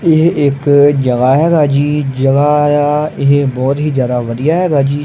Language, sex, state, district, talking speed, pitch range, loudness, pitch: Punjabi, male, Punjab, Kapurthala, 140 wpm, 135-150 Hz, -12 LUFS, 145 Hz